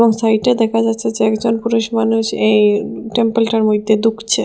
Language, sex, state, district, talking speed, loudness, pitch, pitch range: Bengali, female, Assam, Hailakandi, 160 wpm, -15 LUFS, 225 Hz, 220-230 Hz